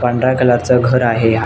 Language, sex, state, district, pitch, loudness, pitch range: Marathi, male, Maharashtra, Nagpur, 125 Hz, -13 LUFS, 115-125 Hz